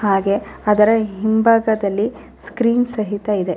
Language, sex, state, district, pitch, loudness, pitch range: Kannada, female, Karnataka, Raichur, 215 Hz, -17 LUFS, 200-225 Hz